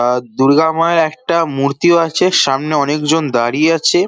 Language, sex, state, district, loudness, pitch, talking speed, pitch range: Bengali, male, West Bengal, Paschim Medinipur, -13 LUFS, 155 Hz, 145 wpm, 135-165 Hz